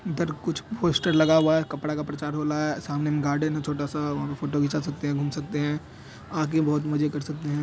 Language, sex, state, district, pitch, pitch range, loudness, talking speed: Hindi, male, Bihar, Madhepura, 150 Hz, 145-155 Hz, -26 LUFS, 220 wpm